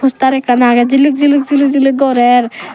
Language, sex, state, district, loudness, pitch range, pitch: Chakma, female, Tripura, Dhalai, -11 LUFS, 245-280 Hz, 270 Hz